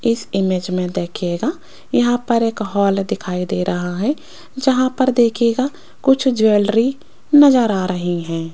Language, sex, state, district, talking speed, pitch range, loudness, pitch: Hindi, female, Rajasthan, Jaipur, 150 wpm, 180-260 Hz, -17 LUFS, 225 Hz